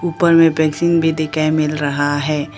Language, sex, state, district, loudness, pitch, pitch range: Hindi, female, Arunachal Pradesh, Lower Dibang Valley, -15 LUFS, 155 Hz, 150-165 Hz